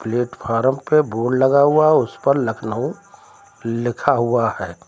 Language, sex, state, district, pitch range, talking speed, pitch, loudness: Hindi, male, Uttar Pradesh, Lucknow, 115-140 Hz, 145 wpm, 120 Hz, -18 LUFS